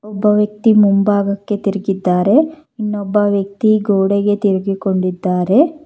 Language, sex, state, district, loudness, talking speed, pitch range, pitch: Kannada, female, Karnataka, Bangalore, -15 LUFS, 80 wpm, 195-210 Hz, 205 Hz